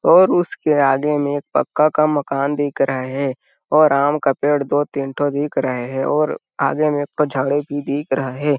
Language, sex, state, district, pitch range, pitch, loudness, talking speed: Hindi, male, Chhattisgarh, Sarguja, 135-150 Hz, 145 Hz, -18 LUFS, 215 wpm